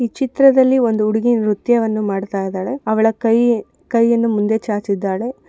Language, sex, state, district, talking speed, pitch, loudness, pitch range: Kannada, female, Karnataka, Bellary, 130 wpm, 225 Hz, -16 LUFS, 210-240 Hz